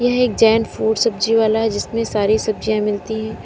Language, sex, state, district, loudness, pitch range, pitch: Hindi, female, Uttar Pradesh, Lalitpur, -17 LUFS, 215-225 Hz, 220 Hz